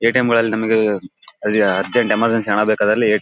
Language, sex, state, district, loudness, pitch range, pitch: Kannada, male, Karnataka, Bellary, -17 LUFS, 105-115 Hz, 110 Hz